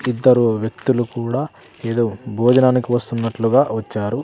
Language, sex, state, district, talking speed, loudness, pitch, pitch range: Telugu, male, Andhra Pradesh, Sri Satya Sai, 100 wpm, -18 LUFS, 120 Hz, 115-125 Hz